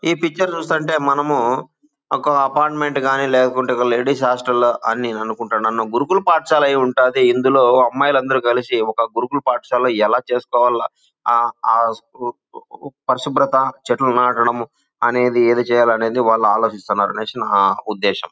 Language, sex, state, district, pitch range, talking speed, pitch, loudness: Telugu, male, Andhra Pradesh, Chittoor, 120-140 Hz, 130 wpm, 125 Hz, -17 LUFS